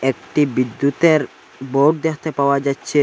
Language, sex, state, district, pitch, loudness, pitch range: Bengali, male, Assam, Hailakandi, 140 Hz, -18 LUFS, 135-155 Hz